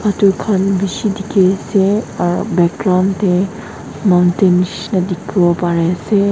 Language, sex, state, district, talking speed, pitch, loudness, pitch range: Nagamese, female, Nagaland, Dimapur, 105 wpm, 190 Hz, -15 LUFS, 180-200 Hz